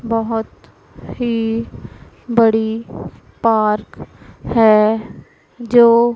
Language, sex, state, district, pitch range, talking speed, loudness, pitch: Hindi, female, Punjab, Pathankot, 220-235 Hz, 60 wpm, -16 LUFS, 225 Hz